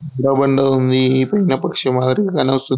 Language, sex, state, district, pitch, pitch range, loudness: Telugu, male, Andhra Pradesh, Anantapur, 135 Hz, 130-140 Hz, -16 LUFS